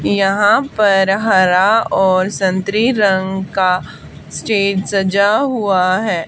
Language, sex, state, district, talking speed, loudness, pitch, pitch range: Hindi, female, Haryana, Charkhi Dadri, 105 wpm, -14 LUFS, 195 Hz, 190-205 Hz